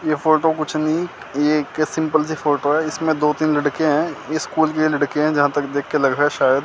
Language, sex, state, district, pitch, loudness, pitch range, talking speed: Hindi, male, Chandigarh, Chandigarh, 155 Hz, -19 LUFS, 145-155 Hz, 260 wpm